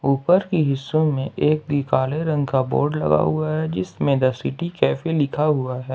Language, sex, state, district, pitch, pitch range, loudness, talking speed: Hindi, male, Jharkhand, Ranchi, 140 Hz, 130-155 Hz, -21 LUFS, 200 wpm